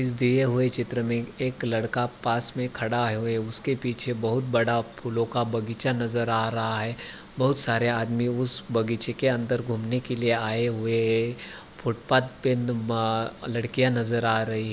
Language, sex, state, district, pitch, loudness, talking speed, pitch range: Hindi, male, Maharashtra, Aurangabad, 120 Hz, -23 LUFS, 175 wpm, 115-125 Hz